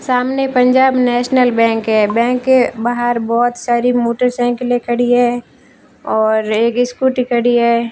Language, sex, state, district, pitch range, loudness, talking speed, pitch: Hindi, female, Rajasthan, Barmer, 235-250 Hz, -14 LUFS, 135 wpm, 245 Hz